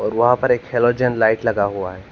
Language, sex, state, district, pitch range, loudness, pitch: Hindi, male, Assam, Hailakandi, 100-120 Hz, -18 LUFS, 120 Hz